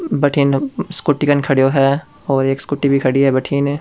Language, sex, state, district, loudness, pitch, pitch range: Rajasthani, male, Rajasthan, Churu, -16 LUFS, 140 Hz, 135-145 Hz